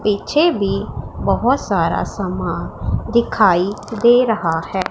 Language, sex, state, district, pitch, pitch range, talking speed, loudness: Hindi, female, Punjab, Pathankot, 215 Hz, 190-235 Hz, 110 wpm, -17 LUFS